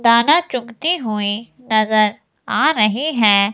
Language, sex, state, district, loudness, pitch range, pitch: Hindi, female, Himachal Pradesh, Shimla, -17 LUFS, 210-250 Hz, 220 Hz